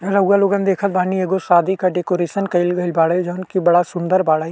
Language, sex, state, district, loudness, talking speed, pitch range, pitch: Bhojpuri, male, Uttar Pradesh, Deoria, -17 LUFS, 210 wpm, 175-190 Hz, 180 Hz